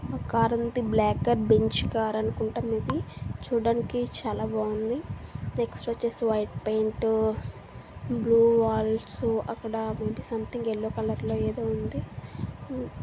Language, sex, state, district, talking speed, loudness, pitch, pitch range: Telugu, female, Andhra Pradesh, Visakhapatnam, 100 wpm, -28 LUFS, 220 Hz, 210-230 Hz